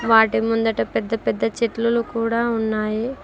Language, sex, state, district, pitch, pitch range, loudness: Telugu, female, Telangana, Mahabubabad, 225 Hz, 220-230 Hz, -21 LUFS